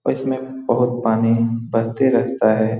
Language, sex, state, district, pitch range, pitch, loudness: Hindi, male, Bihar, Saran, 115-130 Hz, 115 Hz, -19 LUFS